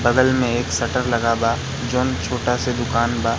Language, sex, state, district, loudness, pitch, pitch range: Hindi, male, Madhya Pradesh, Katni, -20 LUFS, 120 Hz, 115-125 Hz